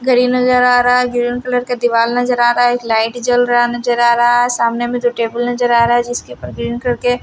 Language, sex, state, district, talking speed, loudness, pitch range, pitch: Hindi, female, Haryana, Rohtak, 280 wpm, -14 LUFS, 240-245 Hz, 240 Hz